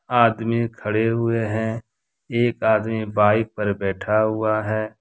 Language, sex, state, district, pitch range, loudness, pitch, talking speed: Hindi, male, Jharkhand, Deoghar, 110-115 Hz, -21 LUFS, 110 Hz, 130 wpm